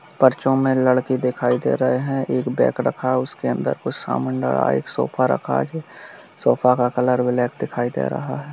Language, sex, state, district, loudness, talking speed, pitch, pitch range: Hindi, male, Uttar Pradesh, Jalaun, -20 LUFS, 195 wpm, 125 Hz, 120-130 Hz